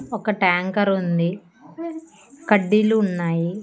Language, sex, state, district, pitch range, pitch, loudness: Telugu, female, Andhra Pradesh, Annamaya, 180-225 Hz, 205 Hz, -20 LUFS